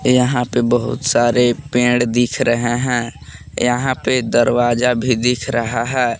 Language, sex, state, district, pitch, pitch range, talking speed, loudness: Hindi, male, Jharkhand, Palamu, 120 Hz, 120-125 Hz, 145 wpm, -16 LUFS